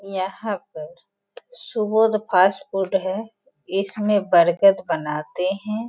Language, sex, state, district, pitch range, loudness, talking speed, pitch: Hindi, female, Bihar, Sitamarhi, 185-220 Hz, -21 LUFS, 90 wpm, 195 Hz